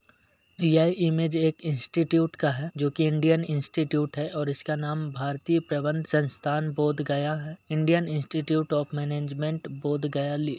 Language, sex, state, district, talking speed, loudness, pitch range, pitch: Hindi, male, Bihar, Gaya, 155 wpm, -27 LUFS, 145-160 Hz, 150 Hz